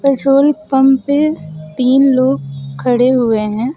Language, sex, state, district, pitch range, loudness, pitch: Hindi, female, Uttar Pradesh, Lucknow, 215-275 Hz, -13 LUFS, 260 Hz